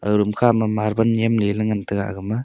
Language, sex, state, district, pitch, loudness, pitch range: Wancho, male, Arunachal Pradesh, Longding, 105 Hz, -20 LUFS, 105-115 Hz